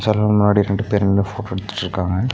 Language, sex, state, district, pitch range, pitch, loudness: Tamil, male, Tamil Nadu, Nilgiris, 95-105 Hz, 100 Hz, -18 LUFS